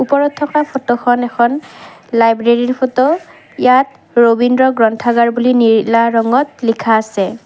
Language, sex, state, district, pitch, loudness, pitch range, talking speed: Assamese, female, Assam, Kamrup Metropolitan, 240 Hz, -13 LUFS, 230-265 Hz, 130 wpm